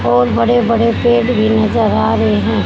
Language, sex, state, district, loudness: Hindi, female, Haryana, Rohtak, -13 LUFS